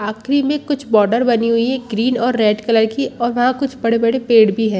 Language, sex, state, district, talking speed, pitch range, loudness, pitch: Hindi, female, Chhattisgarh, Bastar, 225 wpm, 220-255 Hz, -16 LUFS, 235 Hz